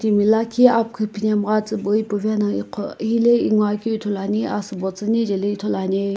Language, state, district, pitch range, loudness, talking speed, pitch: Sumi, Nagaland, Kohima, 205-220 Hz, -20 LUFS, 175 wpm, 215 Hz